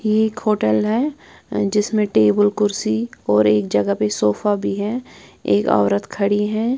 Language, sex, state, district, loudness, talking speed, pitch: Hindi, female, Bihar, Patna, -19 LUFS, 160 wpm, 205 Hz